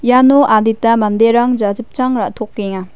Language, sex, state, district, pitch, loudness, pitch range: Garo, female, Meghalaya, West Garo Hills, 230 Hz, -13 LUFS, 210-250 Hz